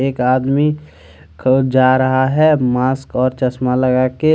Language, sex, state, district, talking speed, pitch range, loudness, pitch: Hindi, male, Jharkhand, Deoghar, 150 wpm, 125-135 Hz, -15 LUFS, 130 Hz